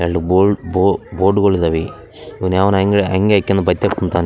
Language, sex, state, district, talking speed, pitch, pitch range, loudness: Kannada, male, Karnataka, Raichur, 140 wpm, 95 Hz, 90-100 Hz, -15 LUFS